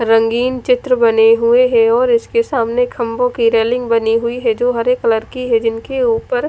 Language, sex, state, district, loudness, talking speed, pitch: Hindi, female, Punjab, Fazilka, -14 LUFS, 195 wpm, 245 Hz